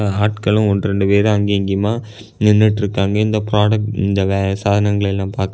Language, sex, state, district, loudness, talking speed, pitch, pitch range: Tamil, male, Tamil Nadu, Kanyakumari, -16 LUFS, 130 wpm, 105 Hz, 100-105 Hz